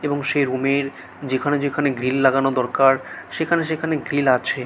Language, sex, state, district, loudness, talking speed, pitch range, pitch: Bengali, male, West Bengal, Malda, -20 LUFS, 165 wpm, 135-145 Hz, 140 Hz